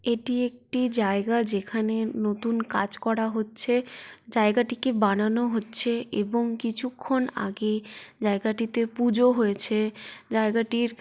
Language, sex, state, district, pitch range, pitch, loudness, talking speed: Bengali, female, West Bengal, Jalpaiguri, 215-240 Hz, 230 Hz, -26 LUFS, 100 wpm